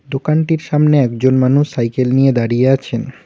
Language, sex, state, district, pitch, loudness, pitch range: Bengali, male, West Bengal, Cooch Behar, 135 Hz, -14 LUFS, 125-150 Hz